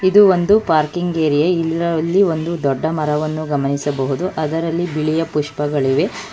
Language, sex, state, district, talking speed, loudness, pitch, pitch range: Kannada, female, Karnataka, Bangalore, 115 wpm, -17 LUFS, 160 Hz, 150-175 Hz